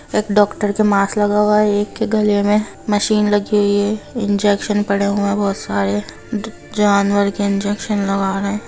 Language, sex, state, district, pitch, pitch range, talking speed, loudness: Hindi, female, Bihar, Sitamarhi, 205 Hz, 200-210 Hz, 185 wpm, -17 LUFS